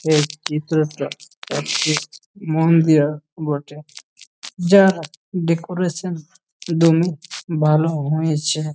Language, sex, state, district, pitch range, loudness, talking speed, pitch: Bengali, male, West Bengal, Malda, 150-170 Hz, -19 LUFS, 75 wpm, 155 Hz